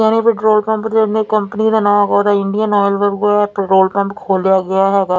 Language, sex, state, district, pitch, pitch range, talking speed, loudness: Punjabi, female, Punjab, Fazilka, 205 Hz, 195-215 Hz, 175 wpm, -14 LUFS